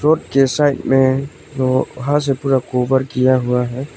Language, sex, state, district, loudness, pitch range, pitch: Hindi, male, Arunachal Pradesh, Lower Dibang Valley, -16 LUFS, 130-140 Hz, 130 Hz